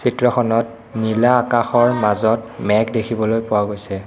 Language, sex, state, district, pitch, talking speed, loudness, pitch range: Assamese, male, Assam, Kamrup Metropolitan, 115 Hz, 120 wpm, -18 LUFS, 110-120 Hz